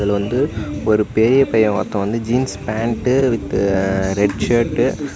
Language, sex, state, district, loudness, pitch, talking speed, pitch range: Tamil, male, Tamil Nadu, Namakkal, -18 LUFS, 110 Hz, 140 wpm, 100-115 Hz